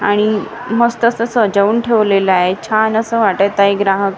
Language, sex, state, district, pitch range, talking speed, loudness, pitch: Marathi, female, Maharashtra, Gondia, 200-230 Hz, 160 wpm, -14 LUFS, 215 Hz